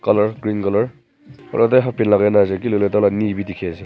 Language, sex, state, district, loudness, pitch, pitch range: Nagamese, male, Nagaland, Kohima, -18 LUFS, 105 Hz, 100-105 Hz